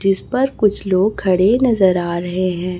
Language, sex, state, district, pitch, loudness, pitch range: Hindi, female, Chhattisgarh, Raipur, 190 Hz, -16 LUFS, 180-210 Hz